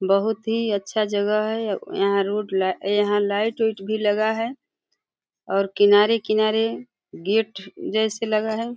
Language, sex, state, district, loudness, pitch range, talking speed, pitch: Hindi, female, Uttar Pradesh, Deoria, -22 LUFS, 200-220 Hz, 145 wpm, 215 Hz